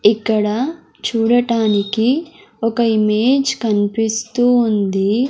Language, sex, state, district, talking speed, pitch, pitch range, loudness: Telugu, male, Andhra Pradesh, Sri Satya Sai, 70 wpm, 225 Hz, 215-245 Hz, -17 LUFS